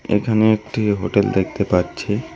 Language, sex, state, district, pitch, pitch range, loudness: Bengali, male, West Bengal, Cooch Behar, 105 Hz, 95-110 Hz, -19 LUFS